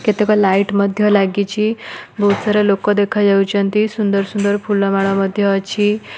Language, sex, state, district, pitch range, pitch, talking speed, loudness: Odia, female, Odisha, Malkangiri, 195-210 Hz, 205 Hz, 135 wpm, -16 LUFS